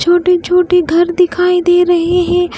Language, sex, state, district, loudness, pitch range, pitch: Hindi, female, Himachal Pradesh, Shimla, -11 LUFS, 350-360 Hz, 355 Hz